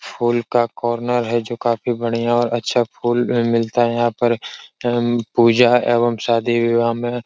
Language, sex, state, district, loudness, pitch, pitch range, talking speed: Hindi, male, Uttar Pradesh, Etah, -18 LUFS, 120 Hz, 115-120 Hz, 175 wpm